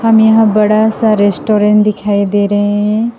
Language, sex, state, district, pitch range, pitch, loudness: Hindi, female, Assam, Sonitpur, 205-220 Hz, 210 Hz, -11 LUFS